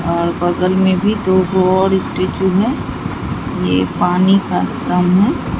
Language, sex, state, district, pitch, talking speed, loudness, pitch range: Hindi, female, Bihar, Katihar, 185 Hz, 150 wpm, -15 LUFS, 180-195 Hz